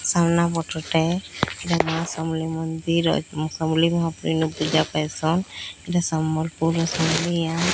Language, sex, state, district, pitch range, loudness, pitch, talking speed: Odia, female, Odisha, Sambalpur, 160-170 Hz, -23 LUFS, 160 Hz, 125 wpm